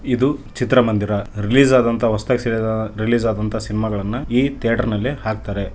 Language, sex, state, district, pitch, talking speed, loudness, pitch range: Kannada, male, Karnataka, Dharwad, 110 Hz, 155 wpm, -19 LUFS, 105-125 Hz